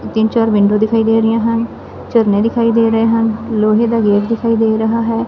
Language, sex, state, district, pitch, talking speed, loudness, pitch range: Punjabi, female, Punjab, Fazilka, 225 Hz, 215 wpm, -14 LUFS, 220-230 Hz